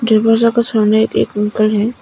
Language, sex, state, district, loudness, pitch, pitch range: Hindi, female, Arunachal Pradesh, Papum Pare, -14 LUFS, 220 Hz, 215-230 Hz